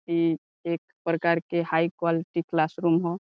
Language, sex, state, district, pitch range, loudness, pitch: Bhojpuri, male, Bihar, Saran, 165-170 Hz, -26 LUFS, 170 Hz